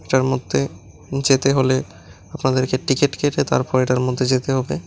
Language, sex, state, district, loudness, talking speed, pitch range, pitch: Bengali, male, Tripura, West Tripura, -19 LUFS, 150 wpm, 125-135 Hz, 130 Hz